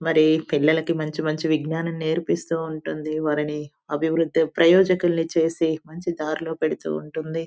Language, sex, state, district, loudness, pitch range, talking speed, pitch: Telugu, female, Telangana, Nalgonda, -23 LUFS, 155-165 Hz, 120 wpm, 160 Hz